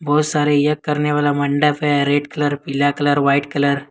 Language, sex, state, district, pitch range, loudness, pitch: Hindi, male, Jharkhand, Ranchi, 145-150 Hz, -17 LUFS, 145 Hz